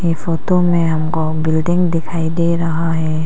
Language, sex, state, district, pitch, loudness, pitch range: Hindi, female, Arunachal Pradesh, Papum Pare, 165 Hz, -17 LUFS, 160-170 Hz